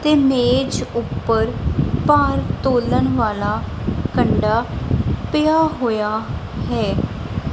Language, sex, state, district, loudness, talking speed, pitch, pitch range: Punjabi, female, Punjab, Kapurthala, -19 LUFS, 80 wpm, 270 Hz, 240-305 Hz